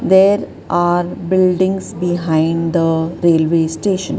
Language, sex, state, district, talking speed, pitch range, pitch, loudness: English, male, Maharashtra, Mumbai Suburban, 100 wpm, 165-185 Hz, 175 Hz, -15 LUFS